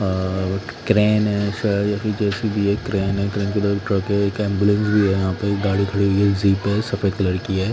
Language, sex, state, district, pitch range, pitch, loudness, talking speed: Hindi, male, Punjab, Fazilka, 100-105 Hz, 100 Hz, -20 LUFS, 250 wpm